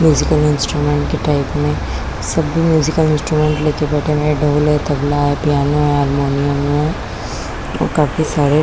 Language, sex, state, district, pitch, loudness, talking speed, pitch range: Hindi, female, Chhattisgarh, Korba, 150 Hz, -16 LUFS, 160 wpm, 145-150 Hz